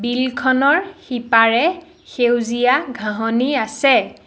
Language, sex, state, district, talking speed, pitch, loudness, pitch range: Assamese, female, Assam, Sonitpur, 70 wpm, 255 Hz, -17 LUFS, 235-285 Hz